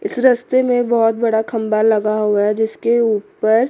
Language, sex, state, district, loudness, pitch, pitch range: Hindi, female, Chandigarh, Chandigarh, -16 LUFS, 225 Hz, 215-240 Hz